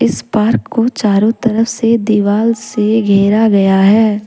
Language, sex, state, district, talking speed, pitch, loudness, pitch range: Hindi, female, Jharkhand, Deoghar, 155 wpm, 215 Hz, -12 LUFS, 205-230 Hz